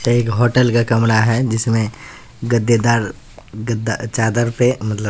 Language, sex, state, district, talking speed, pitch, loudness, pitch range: Hindi, male, Bihar, Katihar, 165 wpm, 115 Hz, -17 LUFS, 110-120 Hz